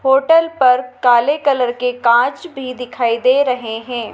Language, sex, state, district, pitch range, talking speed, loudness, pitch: Hindi, female, Madhya Pradesh, Dhar, 245-270 Hz, 160 wpm, -15 LUFS, 250 Hz